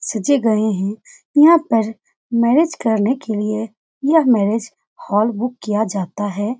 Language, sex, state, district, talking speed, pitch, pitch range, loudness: Hindi, female, Bihar, Saran, 145 wpm, 225 Hz, 210-245 Hz, -17 LUFS